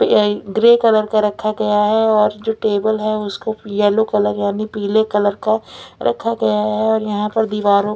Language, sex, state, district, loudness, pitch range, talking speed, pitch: Hindi, female, Punjab, Fazilka, -17 LUFS, 210-220 Hz, 190 wpm, 215 Hz